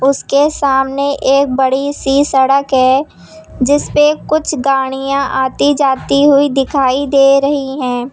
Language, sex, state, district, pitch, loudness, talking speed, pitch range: Hindi, female, Uttar Pradesh, Lucknow, 275 Hz, -12 LUFS, 125 wpm, 265-285 Hz